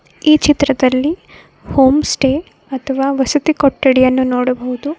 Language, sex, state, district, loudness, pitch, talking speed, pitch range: Kannada, female, Karnataka, Koppal, -14 LUFS, 270 Hz, 85 wpm, 260-295 Hz